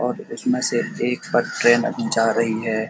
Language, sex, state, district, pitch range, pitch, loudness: Hindi, male, Uttar Pradesh, Etah, 115-125 Hz, 115 Hz, -21 LUFS